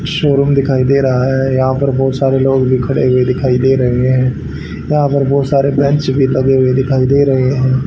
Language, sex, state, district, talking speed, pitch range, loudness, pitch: Hindi, male, Haryana, Charkhi Dadri, 215 wpm, 130-140 Hz, -12 LUFS, 135 Hz